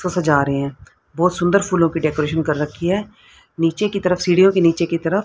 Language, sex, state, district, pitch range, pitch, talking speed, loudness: Hindi, female, Haryana, Rohtak, 150-185 Hz, 170 Hz, 230 wpm, -18 LUFS